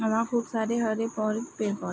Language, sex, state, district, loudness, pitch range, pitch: Hindi, female, Uttar Pradesh, Varanasi, -28 LUFS, 215-230 Hz, 225 Hz